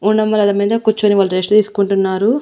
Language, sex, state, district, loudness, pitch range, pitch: Telugu, female, Andhra Pradesh, Annamaya, -14 LUFS, 195-215 Hz, 205 Hz